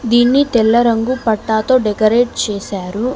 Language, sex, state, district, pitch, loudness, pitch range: Telugu, female, Telangana, Mahabubabad, 230 Hz, -14 LUFS, 215-245 Hz